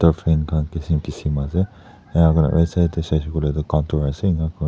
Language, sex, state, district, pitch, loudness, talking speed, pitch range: Nagamese, male, Nagaland, Dimapur, 80 Hz, -20 LUFS, 205 wpm, 75-85 Hz